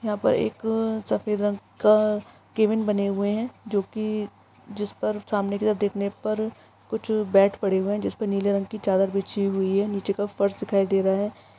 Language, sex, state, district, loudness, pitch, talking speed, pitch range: Hindi, female, Andhra Pradesh, Visakhapatnam, -25 LUFS, 205 Hz, 205 wpm, 200-215 Hz